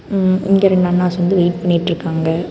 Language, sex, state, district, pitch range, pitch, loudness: Tamil, female, Karnataka, Bangalore, 170-185 Hz, 180 Hz, -15 LUFS